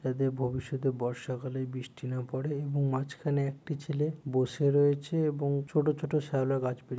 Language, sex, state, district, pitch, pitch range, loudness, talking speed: Bengali, male, West Bengal, Purulia, 135 Hz, 130-145 Hz, -31 LUFS, 170 wpm